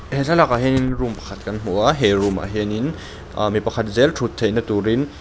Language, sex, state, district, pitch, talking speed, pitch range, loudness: Mizo, male, Mizoram, Aizawl, 110 Hz, 220 wpm, 100-130 Hz, -20 LUFS